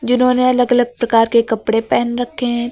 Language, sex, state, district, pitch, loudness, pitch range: Hindi, female, Uttar Pradesh, Lucknow, 240 Hz, -15 LUFS, 230-245 Hz